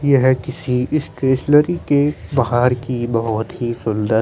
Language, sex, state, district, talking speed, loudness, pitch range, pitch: Hindi, male, Chandigarh, Chandigarh, 155 wpm, -18 LUFS, 120-140 Hz, 130 Hz